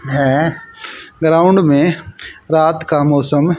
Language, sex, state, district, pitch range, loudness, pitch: Hindi, female, Haryana, Jhajjar, 145-170 Hz, -13 LUFS, 160 Hz